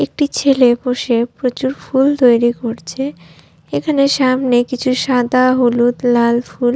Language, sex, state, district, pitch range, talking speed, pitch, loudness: Bengali, female, West Bengal, Jhargram, 245-265 Hz, 135 wpm, 250 Hz, -15 LUFS